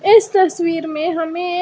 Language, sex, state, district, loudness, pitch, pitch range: Hindi, female, Karnataka, Bangalore, -17 LUFS, 345 Hz, 330-375 Hz